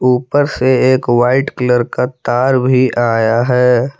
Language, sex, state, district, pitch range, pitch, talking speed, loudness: Hindi, male, Jharkhand, Palamu, 120-130 Hz, 125 Hz, 150 wpm, -13 LUFS